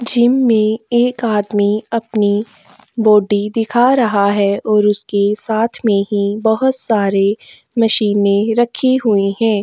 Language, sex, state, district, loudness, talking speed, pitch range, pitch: Hindi, female, Goa, North and South Goa, -15 LUFS, 125 wpm, 205-230 Hz, 215 Hz